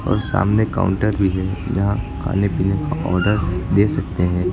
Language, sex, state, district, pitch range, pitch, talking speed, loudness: Hindi, male, Uttar Pradesh, Lucknow, 90-100 Hz, 95 Hz, 170 wpm, -19 LUFS